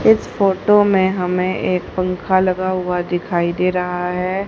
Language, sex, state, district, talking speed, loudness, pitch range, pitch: Hindi, female, Haryana, Charkhi Dadri, 160 wpm, -17 LUFS, 180-190 Hz, 185 Hz